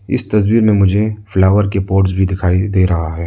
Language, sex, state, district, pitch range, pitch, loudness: Hindi, male, Arunachal Pradesh, Lower Dibang Valley, 95-105 Hz, 95 Hz, -14 LUFS